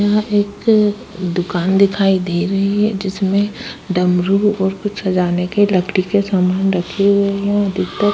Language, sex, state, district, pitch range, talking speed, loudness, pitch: Hindi, female, Uttar Pradesh, Budaun, 185-205 Hz, 155 wpm, -16 LUFS, 195 Hz